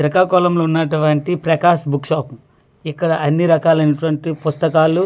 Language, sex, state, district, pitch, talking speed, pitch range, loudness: Telugu, male, Andhra Pradesh, Manyam, 160 Hz, 105 wpm, 150-165 Hz, -16 LUFS